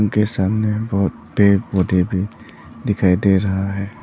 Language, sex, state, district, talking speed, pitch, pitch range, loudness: Hindi, male, Arunachal Pradesh, Lower Dibang Valley, 150 wpm, 100 Hz, 95-105 Hz, -18 LUFS